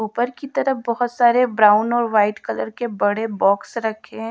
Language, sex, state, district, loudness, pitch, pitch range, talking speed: Hindi, female, Odisha, Malkangiri, -19 LUFS, 230 Hz, 210-245 Hz, 195 wpm